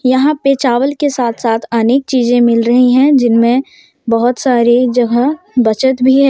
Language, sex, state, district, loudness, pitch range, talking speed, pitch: Hindi, female, Jharkhand, Deoghar, -12 LUFS, 235-270 Hz, 170 wpm, 250 Hz